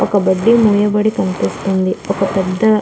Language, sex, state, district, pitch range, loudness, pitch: Telugu, female, Andhra Pradesh, Krishna, 190-215 Hz, -15 LUFS, 195 Hz